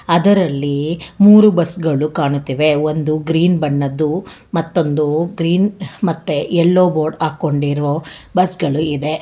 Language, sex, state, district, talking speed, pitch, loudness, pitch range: Kannada, female, Karnataka, Bangalore, 110 wpm, 160 Hz, -16 LUFS, 150-175 Hz